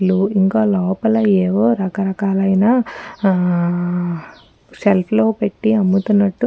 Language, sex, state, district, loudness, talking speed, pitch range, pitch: Telugu, female, Telangana, Nalgonda, -16 LUFS, 95 wpm, 190-220 Hz, 195 Hz